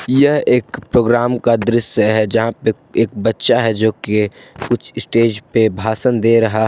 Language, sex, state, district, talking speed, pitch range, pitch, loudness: Hindi, male, Jharkhand, Garhwa, 160 wpm, 110-120 Hz, 115 Hz, -15 LUFS